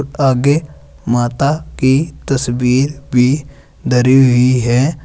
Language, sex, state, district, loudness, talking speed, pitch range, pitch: Hindi, male, Uttar Pradesh, Saharanpur, -14 LUFS, 95 wpm, 125-140 Hz, 135 Hz